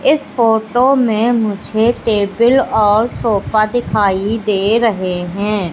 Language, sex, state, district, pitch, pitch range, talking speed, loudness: Hindi, female, Madhya Pradesh, Katni, 220 Hz, 205-235 Hz, 115 wpm, -14 LUFS